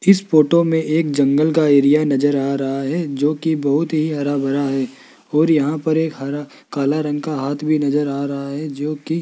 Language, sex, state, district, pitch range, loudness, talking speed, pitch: Hindi, male, Rajasthan, Jaipur, 140-155 Hz, -18 LUFS, 215 wpm, 150 Hz